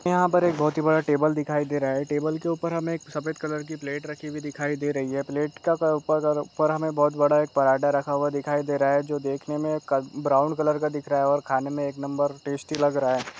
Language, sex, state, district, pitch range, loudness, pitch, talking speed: Hindi, male, Chhattisgarh, Bastar, 140-155 Hz, -25 LUFS, 145 Hz, 270 wpm